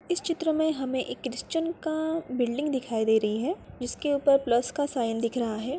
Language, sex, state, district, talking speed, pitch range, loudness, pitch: Hindi, female, Bihar, Madhepura, 205 wpm, 240-315 Hz, -28 LUFS, 260 Hz